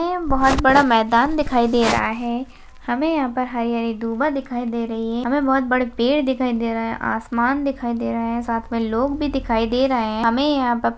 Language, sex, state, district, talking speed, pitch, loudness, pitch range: Hindi, female, Maharashtra, Chandrapur, 230 wpm, 240 Hz, -20 LUFS, 230-270 Hz